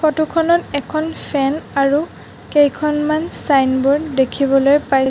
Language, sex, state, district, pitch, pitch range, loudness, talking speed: Assamese, female, Assam, Sonitpur, 290 Hz, 275-310 Hz, -16 LUFS, 105 wpm